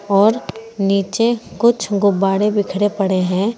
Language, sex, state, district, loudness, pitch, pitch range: Hindi, female, Uttar Pradesh, Saharanpur, -17 LUFS, 205 Hz, 195-220 Hz